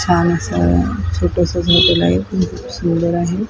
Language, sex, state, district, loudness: Marathi, female, Maharashtra, Mumbai Suburban, -16 LUFS